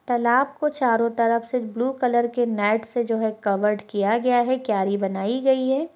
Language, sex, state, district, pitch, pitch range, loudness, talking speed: Hindi, female, Chhattisgarh, Balrampur, 235 Hz, 215-250 Hz, -22 LUFS, 200 wpm